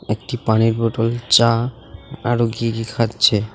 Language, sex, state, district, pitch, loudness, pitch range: Bengali, male, West Bengal, Alipurduar, 115 Hz, -18 LUFS, 110-120 Hz